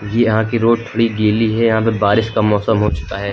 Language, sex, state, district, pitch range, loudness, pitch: Hindi, male, Uttar Pradesh, Lucknow, 105-115 Hz, -15 LUFS, 110 Hz